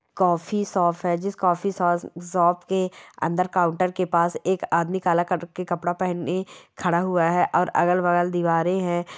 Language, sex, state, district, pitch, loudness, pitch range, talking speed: Hindi, female, Chhattisgarh, Balrampur, 175 Hz, -23 LUFS, 175-185 Hz, 175 wpm